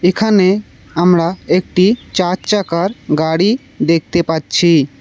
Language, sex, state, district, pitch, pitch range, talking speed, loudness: Bengali, male, West Bengal, Cooch Behar, 180 Hz, 165-195 Hz, 95 wpm, -14 LUFS